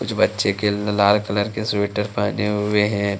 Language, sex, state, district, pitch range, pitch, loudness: Hindi, male, Jharkhand, Deoghar, 100-105 Hz, 105 Hz, -20 LUFS